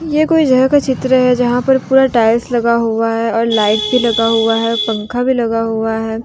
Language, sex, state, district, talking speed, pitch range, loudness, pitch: Hindi, female, Jharkhand, Deoghar, 230 wpm, 225-260 Hz, -13 LUFS, 235 Hz